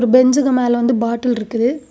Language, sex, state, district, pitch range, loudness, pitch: Tamil, female, Tamil Nadu, Kanyakumari, 235-255 Hz, -16 LUFS, 245 Hz